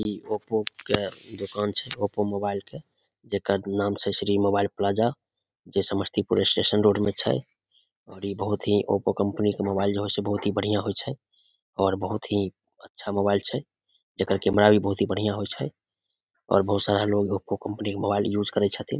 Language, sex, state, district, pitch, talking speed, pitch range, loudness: Maithili, male, Bihar, Samastipur, 100 Hz, 195 wpm, 100-105 Hz, -26 LUFS